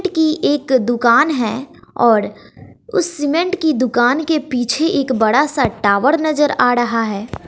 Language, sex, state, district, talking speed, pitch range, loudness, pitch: Hindi, female, Bihar, West Champaran, 160 wpm, 240-310 Hz, -16 LUFS, 265 Hz